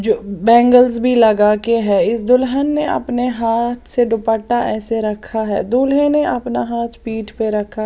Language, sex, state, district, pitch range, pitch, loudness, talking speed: Hindi, female, Odisha, Sambalpur, 220-245 Hz, 230 Hz, -16 LUFS, 185 wpm